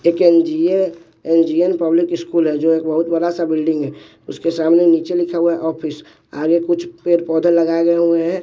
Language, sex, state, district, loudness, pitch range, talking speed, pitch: Hindi, male, Bihar, West Champaran, -16 LUFS, 160-170 Hz, 200 wpm, 170 Hz